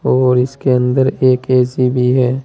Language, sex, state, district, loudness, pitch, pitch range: Hindi, male, Uttar Pradesh, Saharanpur, -14 LUFS, 130 Hz, 125-130 Hz